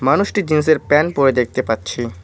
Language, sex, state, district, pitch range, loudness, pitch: Bengali, male, West Bengal, Cooch Behar, 120-155 Hz, -17 LUFS, 135 Hz